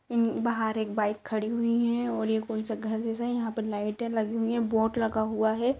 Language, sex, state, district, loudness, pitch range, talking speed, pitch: Hindi, female, Bihar, Kishanganj, -29 LUFS, 220-235 Hz, 250 wpm, 225 Hz